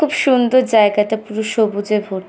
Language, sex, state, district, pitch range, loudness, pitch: Bengali, female, West Bengal, North 24 Parganas, 210-245 Hz, -16 LUFS, 220 Hz